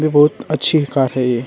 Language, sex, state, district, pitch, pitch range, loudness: Hindi, male, Karnataka, Bangalore, 140 Hz, 130-150 Hz, -15 LUFS